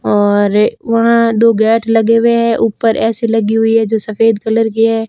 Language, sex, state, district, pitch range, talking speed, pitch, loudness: Hindi, female, Rajasthan, Barmer, 220-230 Hz, 200 wpm, 225 Hz, -12 LUFS